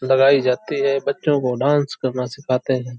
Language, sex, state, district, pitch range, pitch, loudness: Hindi, male, Uttar Pradesh, Hamirpur, 125-140 Hz, 135 Hz, -19 LUFS